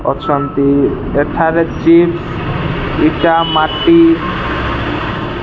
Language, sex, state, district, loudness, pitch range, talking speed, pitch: Odia, male, Odisha, Malkangiri, -13 LUFS, 145-170 Hz, 65 wpm, 160 Hz